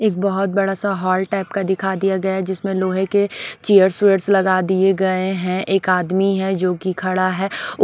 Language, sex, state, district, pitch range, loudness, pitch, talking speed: Hindi, female, Odisha, Sambalpur, 185-195 Hz, -18 LUFS, 190 Hz, 215 wpm